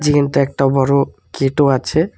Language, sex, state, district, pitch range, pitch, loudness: Bengali, male, West Bengal, Alipurduar, 135-150 Hz, 140 Hz, -16 LUFS